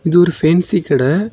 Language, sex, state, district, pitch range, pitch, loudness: Tamil, male, Tamil Nadu, Kanyakumari, 160-185 Hz, 175 Hz, -14 LUFS